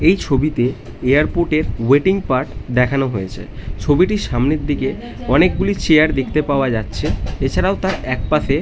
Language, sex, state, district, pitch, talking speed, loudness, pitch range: Bengali, male, West Bengal, North 24 Parganas, 135 Hz, 130 wpm, -17 LUFS, 125-155 Hz